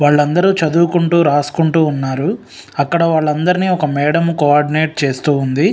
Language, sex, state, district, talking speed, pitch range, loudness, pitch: Telugu, male, Telangana, Nalgonda, 105 wpm, 145-170 Hz, -14 LUFS, 155 Hz